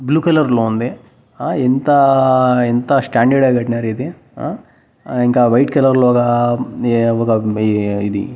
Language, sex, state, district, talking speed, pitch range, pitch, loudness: Telugu, male, Andhra Pradesh, Annamaya, 145 wpm, 115-130 Hz, 120 Hz, -15 LUFS